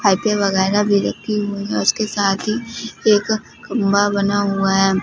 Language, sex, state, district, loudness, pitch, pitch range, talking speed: Hindi, female, Punjab, Fazilka, -18 LUFS, 205 Hz, 200-215 Hz, 155 wpm